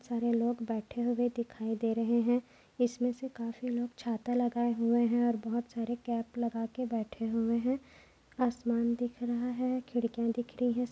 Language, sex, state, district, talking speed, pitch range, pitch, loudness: Hindi, female, Maharashtra, Aurangabad, 175 wpm, 230-245 Hz, 240 Hz, -33 LUFS